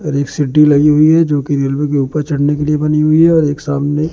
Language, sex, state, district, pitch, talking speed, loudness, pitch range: Hindi, male, Madhya Pradesh, Katni, 150 Hz, 275 wpm, -12 LUFS, 145-150 Hz